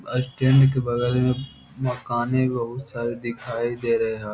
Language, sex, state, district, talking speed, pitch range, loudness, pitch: Hindi, male, Bihar, Jamui, 165 wpm, 120-130 Hz, -23 LUFS, 125 Hz